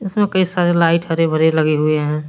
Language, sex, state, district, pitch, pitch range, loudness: Hindi, male, Jharkhand, Deoghar, 165 Hz, 155-180 Hz, -16 LUFS